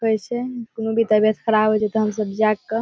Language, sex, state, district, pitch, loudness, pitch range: Maithili, female, Bihar, Saharsa, 220 Hz, -20 LUFS, 215-225 Hz